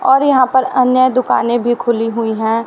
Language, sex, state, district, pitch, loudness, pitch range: Hindi, female, Haryana, Rohtak, 250 Hz, -14 LUFS, 230-260 Hz